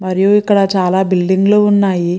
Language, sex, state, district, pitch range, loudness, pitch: Telugu, female, Andhra Pradesh, Guntur, 185-200 Hz, -12 LUFS, 190 Hz